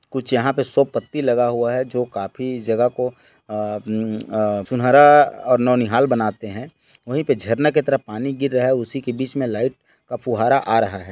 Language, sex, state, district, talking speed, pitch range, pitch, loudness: Hindi, male, Chhattisgarh, Bilaspur, 210 wpm, 115-135 Hz, 125 Hz, -19 LUFS